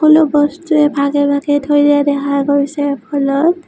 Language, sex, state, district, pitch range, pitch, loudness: Assamese, female, Assam, Sonitpur, 285-295 Hz, 290 Hz, -13 LUFS